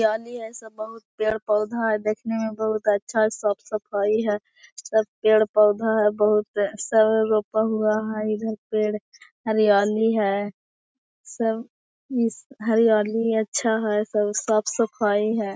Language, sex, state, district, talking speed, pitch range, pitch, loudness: Hindi, female, Bihar, Gaya, 115 wpm, 210-220 Hz, 215 Hz, -23 LUFS